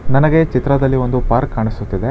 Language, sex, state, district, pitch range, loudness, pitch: Kannada, male, Karnataka, Bangalore, 115-135 Hz, -16 LUFS, 125 Hz